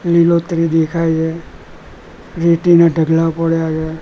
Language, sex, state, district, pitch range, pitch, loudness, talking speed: Gujarati, male, Gujarat, Gandhinagar, 160-170 Hz, 165 Hz, -14 LUFS, 105 wpm